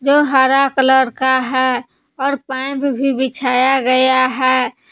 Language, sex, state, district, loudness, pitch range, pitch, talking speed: Hindi, female, Jharkhand, Palamu, -15 LUFS, 260-275 Hz, 265 Hz, 135 wpm